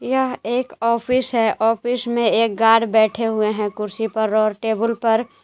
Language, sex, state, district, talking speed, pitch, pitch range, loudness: Hindi, female, Jharkhand, Garhwa, 175 wpm, 225 Hz, 220-235 Hz, -19 LUFS